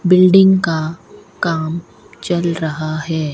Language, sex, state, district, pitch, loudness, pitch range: Hindi, female, Rajasthan, Bikaner, 165 Hz, -16 LUFS, 160-180 Hz